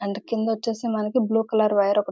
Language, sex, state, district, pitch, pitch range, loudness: Telugu, female, Andhra Pradesh, Visakhapatnam, 220 Hz, 205-225 Hz, -23 LUFS